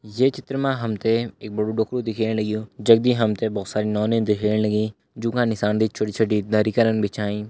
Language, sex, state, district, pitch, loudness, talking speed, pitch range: Garhwali, male, Uttarakhand, Uttarkashi, 110 Hz, -22 LUFS, 185 wpm, 105-115 Hz